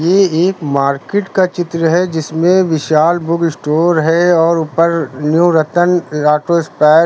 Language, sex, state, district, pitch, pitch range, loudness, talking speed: Hindi, male, Uttar Pradesh, Lucknow, 165 Hz, 155-175 Hz, -13 LUFS, 135 wpm